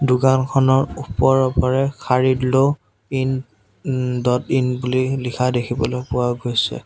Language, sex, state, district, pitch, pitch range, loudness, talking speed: Assamese, male, Assam, Sonitpur, 130 Hz, 125-130 Hz, -19 LUFS, 105 wpm